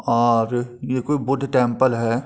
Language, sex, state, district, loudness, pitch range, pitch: Hindi, male, Uttar Pradesh, Etah, -20 LUFS, 120-130 Hz, 125 Hz